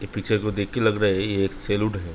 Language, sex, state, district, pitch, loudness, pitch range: Hindi, male, Uttar Pradesh, Budaun, 100 Hz, -24 LUFS, 100-105 Hz